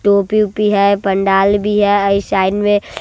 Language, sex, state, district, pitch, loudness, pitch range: Hindi, male, Bihar, West Champaran, 200 Hz, -14 LUFS, 195-205 Hz